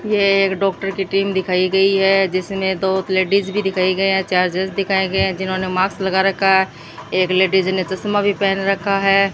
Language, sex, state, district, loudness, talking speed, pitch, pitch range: Hindi, female, Rajasthan, Bikaner, -17 LUFS, 205 wpm, 190 Hz, 190-195 Hz